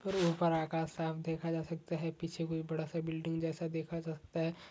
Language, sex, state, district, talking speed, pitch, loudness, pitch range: Hindi, male, West Bengal, Dakshin Dinajpur, 230 wpm, 165 Hz, -37 LUFS, 160-165 Hz